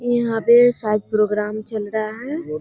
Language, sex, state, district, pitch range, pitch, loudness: Hindi, female, Bihar, Saharsa, 210-240 Hz, 220 Hz, -19 LUFS